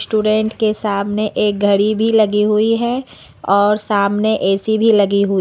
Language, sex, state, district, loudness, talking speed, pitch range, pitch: Hindi, female, Uttar Pradesh, Lucknow, -15 LUFS, 165 wpm, 200-220 Hz, 210 Hz